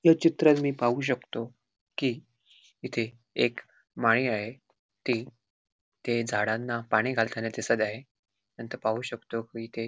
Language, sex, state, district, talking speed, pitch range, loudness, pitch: Marathi, male, Goa, North and South Goa, 140 wpm, 110-125 Hz, -28 LUFS, 115 Hz